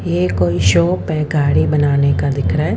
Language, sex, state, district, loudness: Hindi, female, Haryana, Rohtak, -15 LUFS